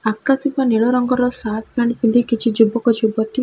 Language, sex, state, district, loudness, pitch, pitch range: Odia, female, Odisha, Khordha, -17 LUFS, 235 Hz, 225-250 Hz